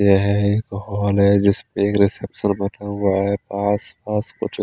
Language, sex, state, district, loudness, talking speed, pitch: Hindi, male, Chandigarh, Chandigarh, -19 LUFS, 130 wpm, 100 Hz